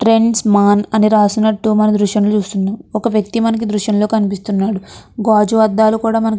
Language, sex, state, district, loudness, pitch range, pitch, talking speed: Telugu, female, Andhra Pradesh, Krishna, -14 LUFS, 210-220 Hz, 215 Hz, 140 wpm